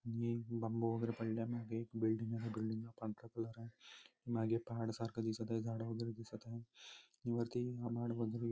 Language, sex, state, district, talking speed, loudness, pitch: Marathi, male, Maharashtra, Nagpur, 175 wpm, -42 LUFS, 115 Hz